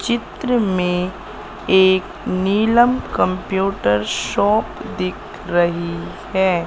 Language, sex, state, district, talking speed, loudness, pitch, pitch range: Hindi, female, Madhya Pradesh, Katni, 80 wpm, -18 LUFS, 190 Hz, 180-215 Hz